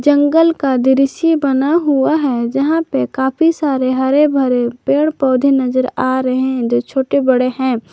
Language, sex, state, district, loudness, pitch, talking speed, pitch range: Hindi, male, Jharkhand, Garhwa, -14 LUFS, 270 Hz, 165 wpm, 255-290 Hz